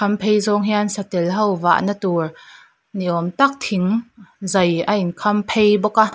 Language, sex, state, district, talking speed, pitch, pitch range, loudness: Mizo, female, Mizoram, Aizawl, 195 wpm, 205 Hz, 185-210 Hz, -18 LUFS